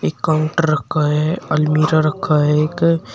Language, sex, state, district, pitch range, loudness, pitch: Hindi, male, Uttar Pradesh, Shamli, 150-160 Hz, -17 LUFS, 155 Hz